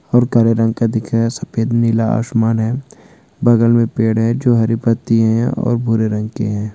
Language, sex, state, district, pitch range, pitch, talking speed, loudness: Hindi, male, West Bengal, Jalpaiguri, 115-120 Hz, 115 Hz, 205 wpm, -15 LUFS